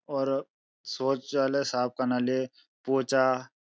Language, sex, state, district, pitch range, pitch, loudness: Garhwali, male, Uttarakhand, Uttarkashi, 130-135 Hz, 130 Hz, -28 LUFS